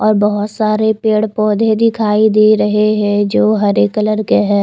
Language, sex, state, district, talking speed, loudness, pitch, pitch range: Hindi, female, Chandigarh, Chandigarh, 180 wpm, -13 LUFS, 215 Hz, 205-215 Hz